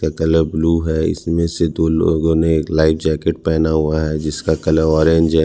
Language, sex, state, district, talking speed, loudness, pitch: Hindi, male, Bihar, Patna, 200 wpm, -16 LUFS, 80 Hz